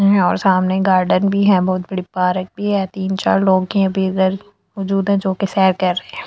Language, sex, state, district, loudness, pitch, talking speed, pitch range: Hindi, female, Delhi, New Delhi, -17 LUFS, 190 Hz, 230 wpm, 185-195 Hz